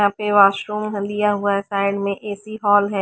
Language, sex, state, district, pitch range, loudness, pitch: Hindi, female, Chandigarh, Chandigarh, 200-210 Hz, -19 LUFS, 205 Hz